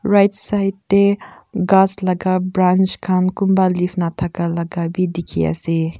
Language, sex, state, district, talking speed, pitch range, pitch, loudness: Nagamese, female, Nagaland, Kohima, 120 wpm, 170-195 Hz, 185 Hz, -18 LUFS